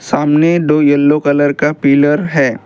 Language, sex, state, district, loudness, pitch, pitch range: Hindi, male, Assam, Kamrup Metropolitan, -12 LUFS, 145 Hz, 145-150 Hz